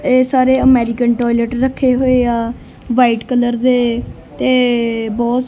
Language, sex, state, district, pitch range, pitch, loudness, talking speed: Punjabi, male, Punjab, Kapurthala, 235-255 Hz, 245 Hz, -14 LUFS, 130 wpm